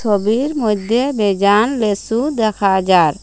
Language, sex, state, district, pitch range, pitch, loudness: Bengali, female, Assam, Hailakandi, 200-235 Hz, 215 Hz, -16 LUFS